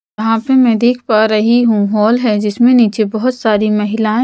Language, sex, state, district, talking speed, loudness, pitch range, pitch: Hindi, female, Punjab, Pathankot, 200 wpm, -12 LUFS, 215-240 Hz, 220 Hz